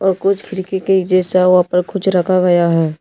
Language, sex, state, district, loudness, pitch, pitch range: Hindi, male, Tripura, West Tripura, -14 LUFS, 185 Hz, 180-190 Hz